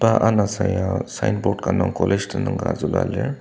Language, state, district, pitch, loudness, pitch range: Ao, Nagaland, Dimapur, 100 Hz, -21 LUFS, 95-110 Hz